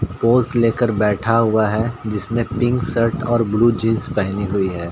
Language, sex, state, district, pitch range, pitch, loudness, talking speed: Hindi, male, Bihar, Saran, 105-120 Hz, 115 Hz, -18 LUFS, 185 wpm